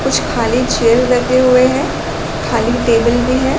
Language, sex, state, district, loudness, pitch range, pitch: Hindi, female, Chhattisgarh, Raigarh, -13 LUFS, 235-255 Hz, 250 Hz